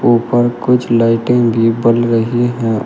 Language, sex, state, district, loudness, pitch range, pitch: Hindi, male, Uttar Pradesh, Shamli, -13 LUFS, 115-120 Hz, 120 Hz